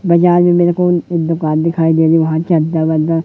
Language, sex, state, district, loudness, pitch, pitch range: Hindi, female, Madhya Pradesh, Katni, -13 LUFS, 165 Hz, 160-175 Hz